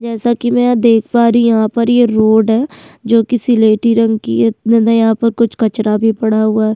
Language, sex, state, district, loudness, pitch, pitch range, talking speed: Hindi, female, Uttarakhand, Tehri Garhwal, -12 LUFS, 230 Hz, 220-235 Hz, 260 wpm